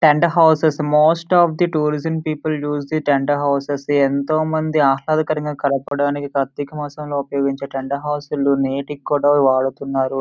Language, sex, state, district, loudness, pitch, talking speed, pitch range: Telugu, male, Andhra Pradesh, Srikakulam, -18 LUFS, 145 Hz, 130 wpm, 140-155 Hz